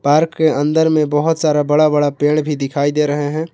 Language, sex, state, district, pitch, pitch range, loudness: Hindi, male, Jharkhand, Palamu, 150 Hz, 145-155 Hz, -15 LUFS